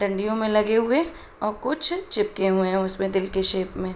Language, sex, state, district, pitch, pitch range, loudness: Hindi, female, Uttar Pradesh, Budaun, 205 Hz, 190-225 Hz, -21 LUFS